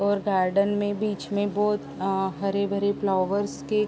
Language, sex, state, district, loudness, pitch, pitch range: Hindi, female, Uttar Pradesh, Jalaun, -25 LUFS, 200 Hz, 195-205 Hz